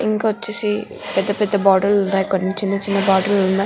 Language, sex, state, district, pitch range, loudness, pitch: Telugu, female, Andhra Pradesh, Guntur, 195-210 Hz, -18 LUFS, 200 Hz